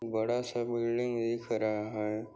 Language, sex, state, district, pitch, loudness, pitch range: Hindi, male, Maharashtra, Sindhudurg, 115 Hz, -33 LUFS, 110-120 Hz